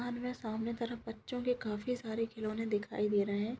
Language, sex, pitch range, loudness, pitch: Maithili, female, 215-245 Hz, -37 LUFS, 225 Hz